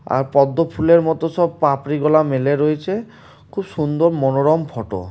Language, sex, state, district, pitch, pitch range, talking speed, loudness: Bengali, male, West Bengal, Purulia, 150 Hz, 140-165 Hz, 165 wpm, -18 LUFS